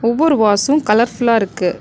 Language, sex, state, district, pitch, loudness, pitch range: Tamil, female, Tamil Nadu, Nilgiris, 230 Hz, -14 LUFS, 210-275 Hz